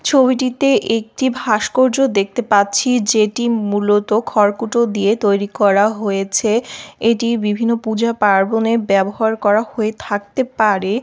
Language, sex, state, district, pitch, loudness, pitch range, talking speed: Bengali, female, West Bengal, Jhargram, 220 Hz, -16 LUFS, 205-235 Hz, 120 wpm